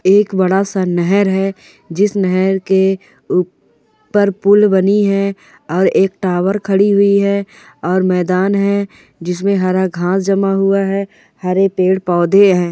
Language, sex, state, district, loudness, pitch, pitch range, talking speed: Hindi, female, Chhattisgarh, Jashpur, -14 LUFS, 195 Hz, 185-200 Hz, 155 wpm